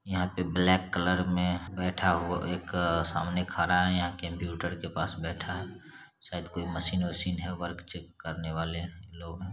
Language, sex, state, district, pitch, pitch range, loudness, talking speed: Hindi, male, Bihar, Saran, 90 Hz, 85-90 Hz, -31 LUFS, 165 wpm